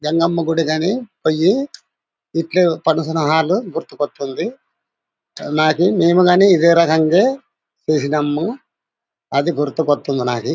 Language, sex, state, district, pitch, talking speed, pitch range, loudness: Telugu, male, Andhra Pradesh, Anantapur, 160 Hz, 90 wpm, 150-180 Hz, -17 LUFS